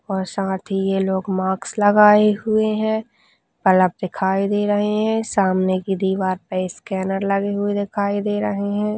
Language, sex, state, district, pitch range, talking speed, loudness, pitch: Hindi, female, Rajasthan, Nagaur, 190-210 Hz, 165 wpm, -19 LUFS, 200 Hz